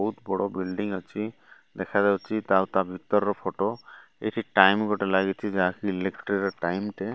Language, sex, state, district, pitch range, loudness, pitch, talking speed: Odia, male, Odisha, Malkangiri, 95-105 Hz, -26 LUFS, 100 Hz, 145 wpm